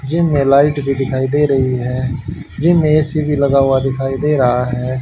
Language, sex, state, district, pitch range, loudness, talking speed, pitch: Hindi, male, Haryana, Rohtak, 130-145 Hz, -15 LUFS, 205 wpm, 135 Hz